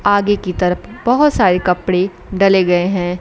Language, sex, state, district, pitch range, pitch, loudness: Hindi, female, Bihar, Kaimur, 180-205 Hz, 185 Hz, -15 LUFS